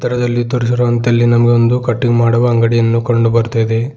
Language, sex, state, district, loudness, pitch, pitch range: Kannada, male, Karnataka, Bidar, -13 LUFS, 120 Hz, 115-120 Hz